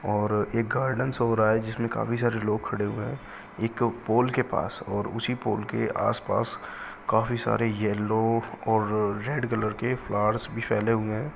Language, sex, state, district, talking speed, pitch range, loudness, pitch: Hindi, male, Bihar, Bhagalpur, 185 wpm, 105-120 Hz, -27 LUFS, 110 Hz